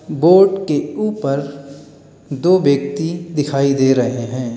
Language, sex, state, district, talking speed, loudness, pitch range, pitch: Hindi, male, Uttar Pradesh, Lalitpur, 120 wpm, -16 LUFS, 140-165 Hz, 140 Hz